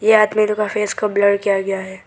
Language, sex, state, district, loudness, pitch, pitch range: Hindi, male, Arunachal Pradesh, Lower Dibang Valley, -17 LUFS, 210 Hz, 195-215 Hz